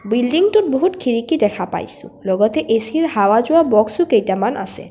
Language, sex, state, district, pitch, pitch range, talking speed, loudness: Assamese, female, Assam, Kamrup Metropolitan, 255 Hz, 220-335 Hz, 145 wpm, -16 LUFS